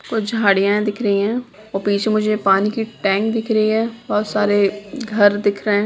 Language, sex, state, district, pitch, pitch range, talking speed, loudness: Hindi, female, Bihar, Begusarai, 210 Hz, 205-220 Hz, 205 wpm, -18 LUFS